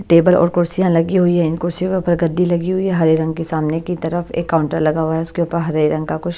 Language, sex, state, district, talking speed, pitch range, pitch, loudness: Hindi, female, Bihar, Patna, 290 wpm, 160-175 Hz, 170 Hz, -17 LUFS